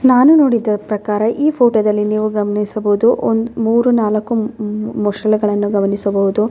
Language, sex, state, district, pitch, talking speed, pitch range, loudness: Kannada, female, Karnataka, Bellary, 215 Hz, 140 wpm, 210-235 Hz, -15 LUFS